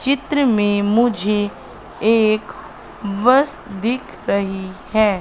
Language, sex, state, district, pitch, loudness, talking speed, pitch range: Hindi, female, Madhya Pradesh, Katni, 215 Hz, -18 LUFS, 90 wpm, 205-245 Hz